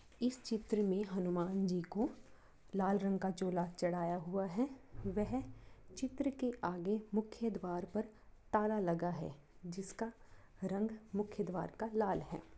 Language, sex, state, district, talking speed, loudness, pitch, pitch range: Hindi, female, Jharkhand, Sahebganj, 145 wpm, -39 LUFS, 205 Hz, 185-225 Hz